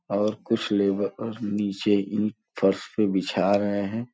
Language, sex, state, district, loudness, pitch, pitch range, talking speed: Hindi, male, Uttar Pradesh, Gorakhpur, -25 LUFS, 100 Hz, 100-105 Hz, 160 wpm